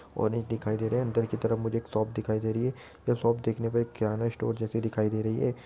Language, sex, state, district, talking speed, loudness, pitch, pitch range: Hindi, male, Chhattisgarh, Bilaspur, 285 wpm, -30 LUFS, 115 Hz, 110-115 Hz